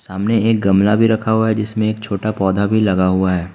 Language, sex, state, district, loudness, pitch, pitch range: Hindi, male, Uttar Pradesh, Lucknow, -16 LUFS, 105 Hz, 95-110 Hz